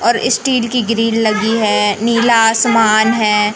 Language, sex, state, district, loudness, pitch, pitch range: Hindi, male, Madhya Pradesh, Katni, -13 LUFS, 225 Hz, 215-235 Hz